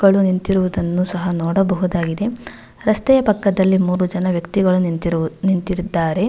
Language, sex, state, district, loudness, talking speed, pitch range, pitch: Kannada, female, Karnataka, Bangalore, -18 LUFS, 105 wpm, 175-195 Hz, 185 Hz